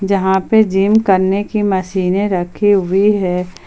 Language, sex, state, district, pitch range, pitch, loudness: Hindi, female, Jharkhand, Palamu, 185-205 Hz, 195 Hz, -14 LUFS